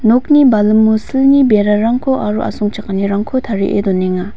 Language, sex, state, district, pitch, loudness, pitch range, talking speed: Garo, female, Meghalaya, West Garo Hills, 215 Hz, -13 LUFS, 205-250 Hz, 110 wpm